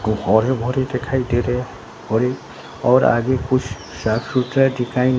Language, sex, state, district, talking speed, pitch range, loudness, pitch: Hindi, male, Bihar, Katihar, 175 wpm, 115-130 Hz, -19 LUFS, 125 Hz